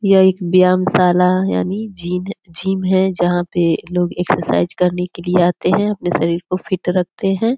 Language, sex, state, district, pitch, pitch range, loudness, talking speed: Hindi, female, Bihar, Purnia, 180 Hz, 175-190 Hz, -17 LUFS, 180 wpm